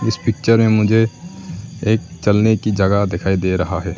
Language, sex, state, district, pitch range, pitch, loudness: Hindi, male, Arunachal Pradesh, Lower Dibang Valley, 95-115 Hz, 105 Hz, -16 LUFS